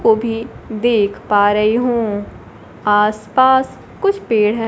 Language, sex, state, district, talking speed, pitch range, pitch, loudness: Hindi, female, Bihar, Kaimur, 140 wpm, 210-240 Hz, 225 Hz, -16 LUFS